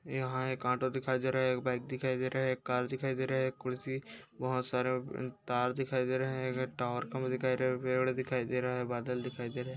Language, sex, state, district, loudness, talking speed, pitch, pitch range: Hindi, male, Rajasthan, Nagaur, -34 LUFS, 240 wpm, 130 Hz, 125-130 Hz